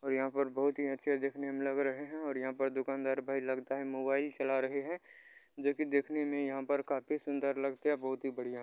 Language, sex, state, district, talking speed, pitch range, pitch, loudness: Maithili, male, Bihar, Muzaffarpur, 245 wpm, 135-145 Hz, 140 Hz, -36 LUFS